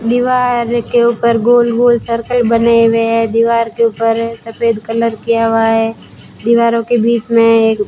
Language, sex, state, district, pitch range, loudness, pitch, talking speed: Hindi, female, Rajasthan, Bikaner, 230-235 Hz, -12 LUFS, 230 Hz, 175 wpm